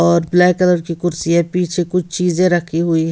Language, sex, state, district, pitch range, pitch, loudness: Hindi, female, Bihar, West Champaran, 170-180 Hz, 175 Hz, -16 LUFS